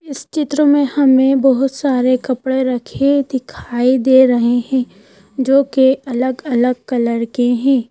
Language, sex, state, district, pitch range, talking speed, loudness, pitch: Hindi, female, Madhya Pradesh, Bhopal, 245-270 Hz, 135 wpm, -15 LUFS, 260 Hz